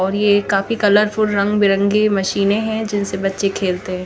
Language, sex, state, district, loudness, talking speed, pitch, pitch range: Hindi, female, Chandigarh, Chandigarh, -17 LUFS, 205 wpm, 200 Hz, 195-210 Hz